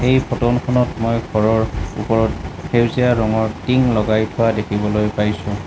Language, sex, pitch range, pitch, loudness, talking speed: Assamese, male, 105-120 Hz, 110 Hz, -18 LUFS, 135 wpm